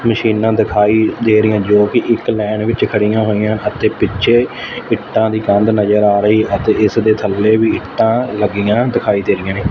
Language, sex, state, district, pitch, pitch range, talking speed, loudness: Punjabi, male, Punjab, Fazilka, 110 Hz, 105-110 Hz, 185 wpm, -14 LUFS